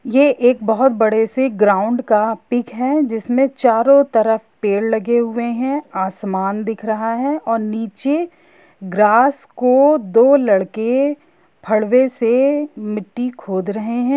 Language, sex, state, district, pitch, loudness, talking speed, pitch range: Hindi, female, Jharkhand, Jamtara, 235 Hz, -16 LUFS, 140 wpm, 220-265 Hz